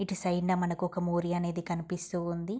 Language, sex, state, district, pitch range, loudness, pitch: Telugu, female, Andhra Pradesh, Guntur, 175-180 Hz, -32 LUFS, 175 Hz